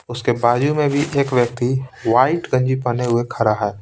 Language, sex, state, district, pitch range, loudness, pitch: Hindi, male, Bihar, Patna, 120-130 Hz, -18 LUFS, 125 Hz